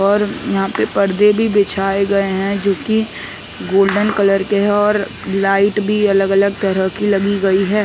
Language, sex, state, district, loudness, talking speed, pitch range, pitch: Hindi, male, Maharashtra, Mumbai Suburban, -15 LUFS, 185 wpm, 195-205 Hz, 200 Hz